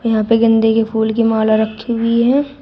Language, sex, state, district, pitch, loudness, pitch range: Hindi, female, Uttar Pradesh, Shamli, 225 Hz, -14 LUFS, 220-230 Hz